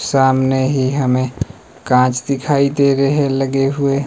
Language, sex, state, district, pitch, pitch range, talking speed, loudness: Hindi, male, Himachal Pradesh, Shimla, 135 Hz, 130-140 Hz, 150 wpm, -15 LUFS